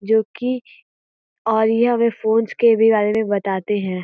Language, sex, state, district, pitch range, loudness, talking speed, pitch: Hindi, female, Uttar Pradesh, Gorakhpur, 210-230 Hz, -18 LUFS, 180 wpm, 220 Hz